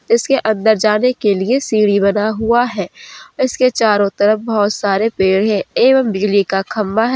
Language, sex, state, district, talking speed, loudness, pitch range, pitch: Hindi, female, Jharkhand, Deoghar, 175 wpm, -14 LUFS, 200-235 Hz, 215 Hz